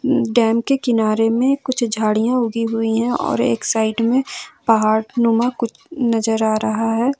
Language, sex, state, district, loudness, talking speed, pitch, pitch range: Hindi, female, Jharkhand, Ranchi, -18 LUFS, 175 wpm, 230 Hz, 225-250 Hz